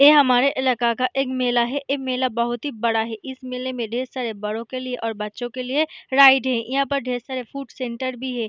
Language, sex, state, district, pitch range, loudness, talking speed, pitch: Hindi, female, Bihar, Araria, 235-265 Hz, -22 LUFS, 250 wpm, 255 Hz